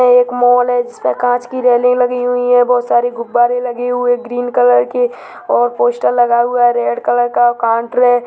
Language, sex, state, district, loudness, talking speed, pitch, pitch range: Hindi, female, Chhattisgarh, Bastar, -13 LUFS, 225 wpm, 245 Hz, 235-245 Hz